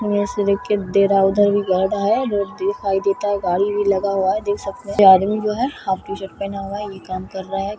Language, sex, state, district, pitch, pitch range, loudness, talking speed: Maithili, female, Bihar, Supaul, 200 Hz, 195-205 Hz, -19 LUFS, 255 wpm